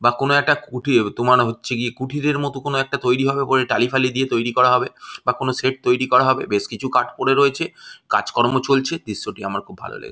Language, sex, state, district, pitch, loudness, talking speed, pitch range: Bengali, male, West Bengal, Malda, 130 Hz, -19 LUFS, 225 wpm, 125-140 Hz